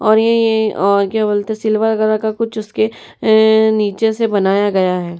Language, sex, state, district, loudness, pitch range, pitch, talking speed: Hindi, female, Uttar Pradesh, Etah, -15 LUFS, 205-220 Hz, 215 Hz, 205 wpm